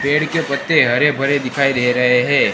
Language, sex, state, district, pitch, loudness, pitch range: Hindi, male, Gujarat, Gandhinagar, 140 Hz, -15 LUFS, 125-150 Hz